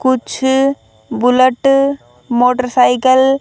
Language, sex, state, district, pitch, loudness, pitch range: Hindi, female, Haryana, Jhajjar, 260 Hz, -13 LUFS, 250-270 Hz